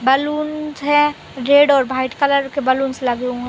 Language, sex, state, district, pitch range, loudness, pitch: Hindi, female, Jharkhand, Sahebganj, 260-290 Hz, -17 LUFS, 275 Hz